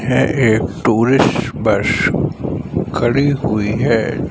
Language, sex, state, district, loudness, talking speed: Hindi, male, Uttar Pradesh, Varanasi, -16 LUFS, 95 wpm